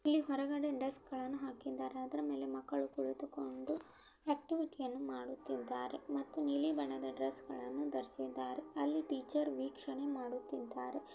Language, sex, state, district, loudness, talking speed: Kannada, female, Karnataka, Belgaum, -41 LUFS, 120 wpm